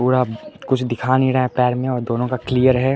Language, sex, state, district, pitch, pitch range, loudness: Hindi, male, Chandigarh, Chandigarh, 125 Hz, 125-130 Hz, -19 LUFS